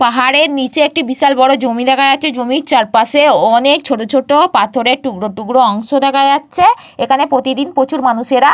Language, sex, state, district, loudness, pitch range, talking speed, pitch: Bengali, female, West Bengal, Paschim Medinipur, -12 LUFS, 250-285 Hz, 160 wpm, 265 Hz